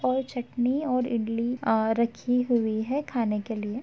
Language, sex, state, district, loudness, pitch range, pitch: Hindi, female, Uttar Pradesh, Etah, -27 LUFS, 225-255 Hz, 240 Hz